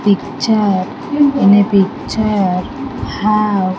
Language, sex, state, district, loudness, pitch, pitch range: English, female, Andhra Pradesh, Sri Satya Sai, -14 LUFS, 205 Hz, 190-220 Hz